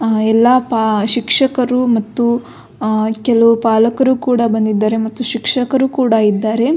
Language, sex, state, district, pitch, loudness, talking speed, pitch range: Kannada, female, Karnataka, Belgaum, 230 Hz, -14 LUFS, 115 wpm, 220-250 Hz